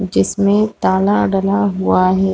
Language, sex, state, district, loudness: Hindi, female, Chhattisgarh, Raigarh, -15 LUFS